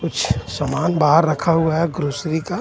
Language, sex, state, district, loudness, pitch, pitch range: Hindi, male, Jharkhand, Ranchi, -19 LUFS, 160 Hz, 145-165 Hz